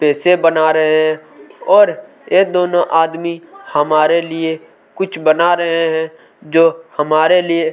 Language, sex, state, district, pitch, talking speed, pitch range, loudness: Hindi, male, Chhattisgarh, Kabirdham, 165 Hz, 130 wpm, 155-175 Hz, -14 LUFS